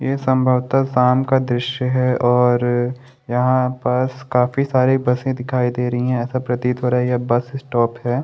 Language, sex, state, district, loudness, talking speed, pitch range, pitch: Hindi, male, Maharashtra, Chandrapur, -18 LUFS, 180 wpm, 125-130 Hz, 125 Hz